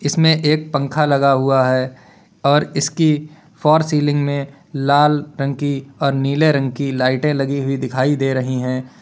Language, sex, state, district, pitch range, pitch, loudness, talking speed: Hindi, male, Uttar Pradesh, Lalitpur, 135-150 Hz, 140 Hz, -17 LUFS, 165 wpm